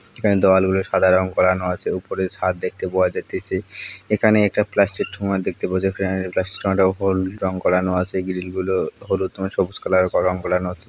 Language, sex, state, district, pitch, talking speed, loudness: Bengali, male, West Bengal, Purulia, 95 Hz, 200 wpm, -20 LUFS